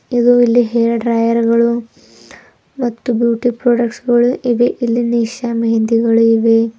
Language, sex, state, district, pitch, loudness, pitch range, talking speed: Kannada, female, Karnataka, Bidar, 235 Hz, -14 LUFS, 230-240 Hz, 105 wpm